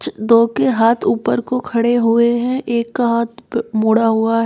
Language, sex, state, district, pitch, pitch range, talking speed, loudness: Hindi, female, Uttar Pradesh, Shamli, 230 Hz, 230-240 Hz, 190 wpm, -16 LUFS